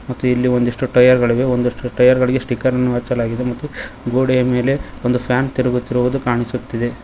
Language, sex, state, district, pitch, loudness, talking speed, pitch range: Kannada, male, Karnataka, Koppal, 125 Hz, -17 LUFS, 155 wpm, 125-130 Hz